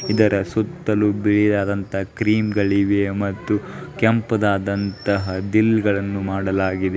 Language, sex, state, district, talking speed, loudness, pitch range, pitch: Kannada, male, Karnataka, Belgaum, 70 wpm, -20 LUFS, 100-105 Hz, 100 Hz